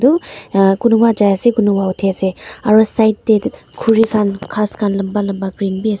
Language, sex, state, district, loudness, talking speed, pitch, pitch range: Nagamese, female, Nagaland, Dimapur, -15 LUFS, 190 wpm, 205 Hz, 195-220 Hz